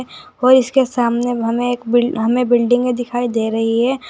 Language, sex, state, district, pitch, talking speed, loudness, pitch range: Hindi, female, Uttar Pradesh, Saharanpur, 245 Hz, 175 wpm, -16 LUFS, 235-250 Hz